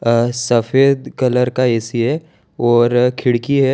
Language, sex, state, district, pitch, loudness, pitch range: Hindi, male, Gujarat, Valsad, 125 Hz, -16 LUFS, 120-135 Hz